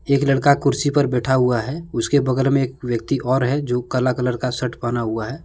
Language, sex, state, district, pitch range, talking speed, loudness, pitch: Hindi, male, Jharkhand, Deoghar, 125-140 Hz, 240 wpm, -20 LUFS, 130 Hz